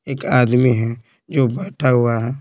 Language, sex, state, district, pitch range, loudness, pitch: Hindi, male, Bihar, Patna, 120-135 Hz, -17 LUFS, 125 Hz